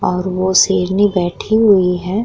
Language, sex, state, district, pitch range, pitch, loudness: Hindi, female, Uttar Pradesh, Muzaffarnagar, 180-205 Hz, 185 Hz, -14 LUFS